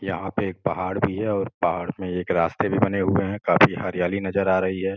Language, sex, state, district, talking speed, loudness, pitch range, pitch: Hindi, male, Uttar Pradesh, Gorakhpur, 255 wpm, -23 LUFS, 95-100 Hz, 95 Hz